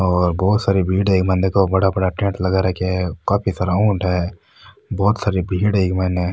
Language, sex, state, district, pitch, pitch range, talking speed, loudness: Rajasthani, male, Rajasthan, Nagaur, 95 Hz, 90-100 Hz, 225 wpm, -18 LUFS